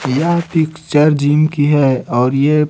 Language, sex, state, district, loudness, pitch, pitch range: Hindi, male, Chhattisgarh, Raipur, -14 LUFS, 150 Hz, 140-155 Hz